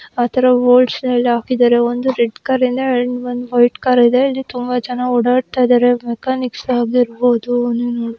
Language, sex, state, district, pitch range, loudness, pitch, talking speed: Kannada, female, Karnataka, Belgaum, 240-255 Hz, -15 LUFS, 245 Hz, 115 wpm